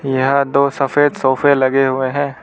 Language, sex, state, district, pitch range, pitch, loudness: Hindi, male, Arunachal Pradesh, Lower Dibang Valley, 130-140 Hz, 135 Hz, -15 LUFS